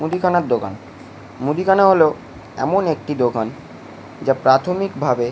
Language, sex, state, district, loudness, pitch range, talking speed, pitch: Bengali, male, West Bengal, Jalpaiguri, -18 LUFS, 125-180 Hz, 125 wpm, 150 Hz